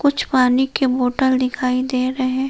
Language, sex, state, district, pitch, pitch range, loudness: Hindi, female, Jharkhand, Palamu, 255 Hz, 255-265 Hz, -18 LUFS